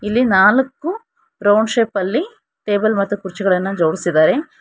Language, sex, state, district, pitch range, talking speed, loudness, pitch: Kannada, female, Karnataka, Bangalore, 195-270 Hz, 105 wpm, -16 LUFS, 210 Hz